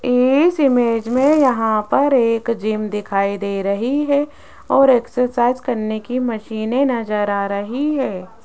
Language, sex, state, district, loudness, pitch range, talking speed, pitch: Hindi, female, Rajasthan, Jaipur, -18 LUFS, 215-265 Hz, 140 wpm, 240 Hz